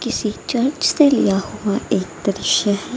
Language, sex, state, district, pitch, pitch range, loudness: Hindi, female, Bihar, Samastipur, 215 Hz, 200-260 Hz, -18 LUFS